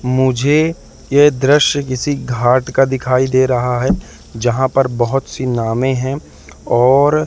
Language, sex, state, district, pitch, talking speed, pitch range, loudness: Hindi, male, Madhya Pradesh, Katni, 130 Hz, 140 wpm, 125-140 Hz, -15 LUFS